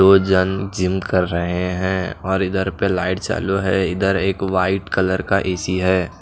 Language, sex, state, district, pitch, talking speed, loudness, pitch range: Hindi, male, Odisha, Nuapada, 95 Hz, 175 wpm, -19 LUFS, 90-95 Hz